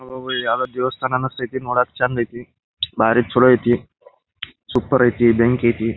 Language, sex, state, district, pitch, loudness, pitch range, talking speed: Kannada, male, Karnataka, Bijapur, 125 Hz, -19 LUFS, 115-130 Hz, 150 wpm